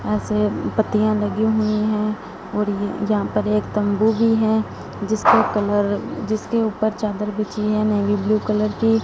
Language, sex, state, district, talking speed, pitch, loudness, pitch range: Hindi, female, Punjab, Fazilka, 160 wpm, 210 Hz, -20 LUFS, 205-215 Hz